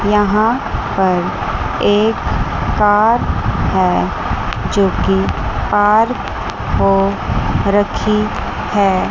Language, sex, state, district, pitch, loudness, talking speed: Hindi, female, Chandigarh, Chandigarh, 200 Hz, -15 LUFS, 70 wpm